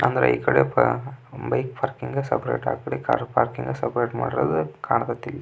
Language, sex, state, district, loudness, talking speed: Kannada, male, Karnataka, Belgaum, -24 LUFS, 155 wpm